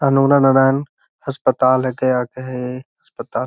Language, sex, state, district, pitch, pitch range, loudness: Magahi, male, Bihar, Gaya, 130 Hz, 130-135 Hz, -17 LUFS